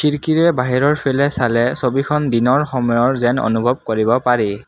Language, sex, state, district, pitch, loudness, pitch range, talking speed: Assamese, male, Assam, Kamrup Metropolitan, 125 Hz, -16 LUFS, 120-145 Hz, 130 wpm